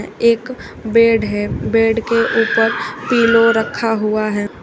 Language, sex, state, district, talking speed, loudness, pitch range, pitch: Hindi, female, Uttar Pradesh, Shamli, 130 wpm, -15 LUFS, 215-235 Hz, 230 Hz